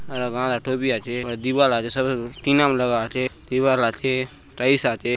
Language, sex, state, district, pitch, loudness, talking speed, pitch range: Halbi, male, Chhattisgarh, Bastar, 130 Hz, -22 LUFS, 150 wpm, 120-130 Hz